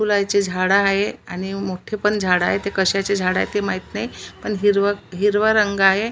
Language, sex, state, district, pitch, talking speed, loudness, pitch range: Marathi, female, Maharashtra, Nagpur, 200 Hz, 195 wpm, -19 LUFS, 190-205 Hz